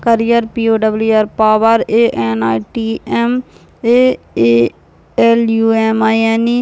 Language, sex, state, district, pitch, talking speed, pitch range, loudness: Hindi, female, Chhattisgarh, Raigarh, 225 Hz, 190 wpm, 220-230 Hz, -13 LUFS